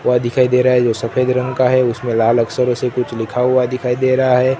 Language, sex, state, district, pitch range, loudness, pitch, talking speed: Hindi, male, Gujarat, Gandhinagar, 120-130 Hz, -15 LUFS, 125 Hz, 275 wpm